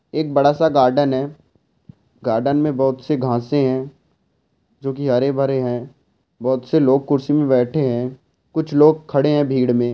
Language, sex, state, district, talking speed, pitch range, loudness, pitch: Hindi, male, Rajasthan, Churu, 175 wpm, 130-145 Hz, -18 LUFS, 135 Hz